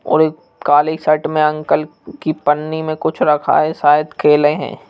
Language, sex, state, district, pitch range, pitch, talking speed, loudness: Hindi, male, Madhya Pradesh, Bhopal, 150-155 Hz, 155 Hz, 185 wpm, -15 LUFS